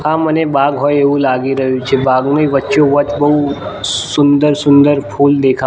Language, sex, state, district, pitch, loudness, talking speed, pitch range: Gujarati, male, Gujarat, Gandhinagar, 140 Hz, -12 LUFS, 170 wpm, 135-145 Hz